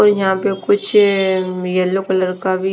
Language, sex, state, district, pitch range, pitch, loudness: Hindi, female, Haryana, Charkhi Dadri, 185-200 Hz, 190 Hz, -16 LUFS